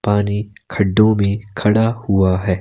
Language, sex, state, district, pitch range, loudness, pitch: Hindi, male, Himachal Pradesh, Shimla, 100-105 Hz, -17 LUFS, 105 Hz